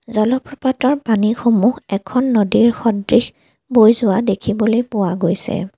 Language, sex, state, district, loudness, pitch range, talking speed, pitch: Assamese, female, Assam, Kamrup Metropolitan, -16 LUFS, 205-245 Hz, 105 wpm, 225 Hz